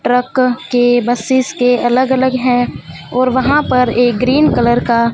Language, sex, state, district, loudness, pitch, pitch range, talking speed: Hindi, female, Punjab, Fazilka, -13 LUFS, 250 Hz, 245-260 Hz, 165 wpm